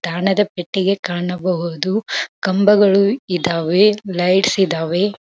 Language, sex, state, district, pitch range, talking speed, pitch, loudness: Kannada, female, Karnataka, Belgaum, 175-200 Hz, 80 wpm, 190 Hz, -17 LUFS